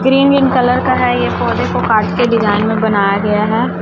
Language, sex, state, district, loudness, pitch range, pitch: Hindi, female, Chhattisgarh, Raipur, -13 LUFS, 210-250 Hz, 220 Hz